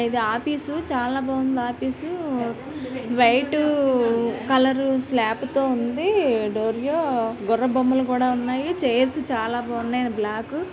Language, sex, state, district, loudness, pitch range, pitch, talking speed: Telugu, female, Andhra Pradesh, Krishna, -23 LUFS, 235-270 Hz, 255 Hz, 130 wpm